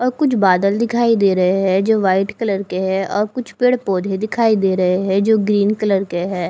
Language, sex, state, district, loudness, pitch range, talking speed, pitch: Hindi, female, Punjab, Fazilka, -17 LUFS, 190-220 Hz, 230 wpm, 200 Hz